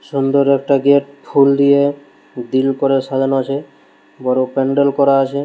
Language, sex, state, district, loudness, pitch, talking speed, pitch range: Bengali, male, West Bengal, Malda, -15 LUFS, 135 Hz, 155 wpm, 130-140 Hz